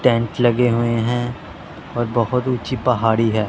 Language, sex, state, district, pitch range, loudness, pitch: Hindi, male, Punjab, Pathankot, 115-125 Hz, -19 LUFS, 120 Hz